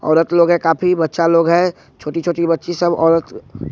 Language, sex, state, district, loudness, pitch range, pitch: Hindi, male, Bihar, West Champaran, -15 LUFS, 165-175 Hz, 165 Hz